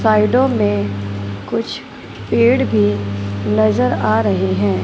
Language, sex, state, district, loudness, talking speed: Hindi, female, Punjab, Fazilka, -17 LUFS, 110 wpm